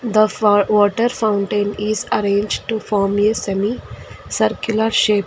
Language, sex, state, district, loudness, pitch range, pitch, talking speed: English, female, Karnataka, Bangalore, -18 LUFS, 205-220 Hz, 210 Hz, 135 wpm